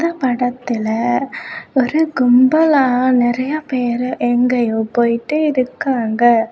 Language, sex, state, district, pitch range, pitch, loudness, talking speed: Tamil, female, Tamil Nadu, Kanyakumari, 240-270 Hz, 250 Hz, -16 LUFS, 85 wpm